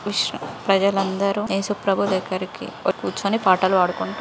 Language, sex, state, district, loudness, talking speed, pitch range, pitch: Telugu, female, Andhra Pradesh, Guntur, -22 LUFS, 140 wpm, 190-200 Hz, 195 Hz